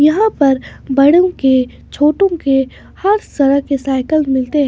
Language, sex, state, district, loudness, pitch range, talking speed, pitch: Hindi, female, Maharashtra, Washim, -14 LUFS, 270-320 Hz, 155 wpm, 280 Hz